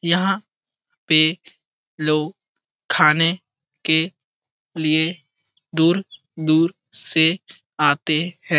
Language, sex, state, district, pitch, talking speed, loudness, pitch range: Hindi, male, Bihar, Jahanabad, 160 Hz, 85 wpm, -18 LUFS, 155-170 Hz